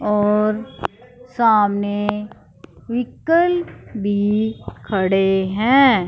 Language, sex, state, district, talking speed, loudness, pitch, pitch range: Hindi, female, Punjab, Fazilka, 60 wpm, -19 LUFS, 210 Hz, 205-245 Hz